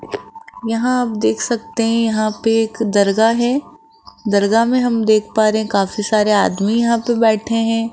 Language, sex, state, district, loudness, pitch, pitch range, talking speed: Hindi, female, Rajasthan, Jaipur, -16 LUFS, 225 Hz, 215-235 Hz, 180 wpm